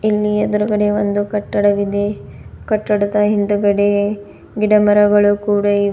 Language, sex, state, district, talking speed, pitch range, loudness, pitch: Kannada, female, Karnataka, Bidar, 110 wpm, 205-210 Hz, -16 LUFS, 205 Hz